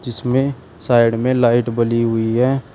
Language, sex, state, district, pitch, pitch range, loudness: Hindi, male, Uttar Pradesh, Shamli, 120 Hz, 115-130 Hz, -17 LUFS